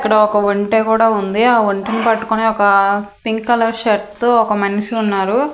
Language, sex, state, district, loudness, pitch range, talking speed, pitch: Telugu, female, Andhra Pradesh, Manyam, -15 LUFS, 205-225 Hz, 175 wpm, 220 Hz